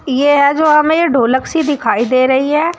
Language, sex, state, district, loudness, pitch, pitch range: Hindi, female, Uttar Pradesh, Shamli, -12 LUFS, 285 Hz, 260-310 Hz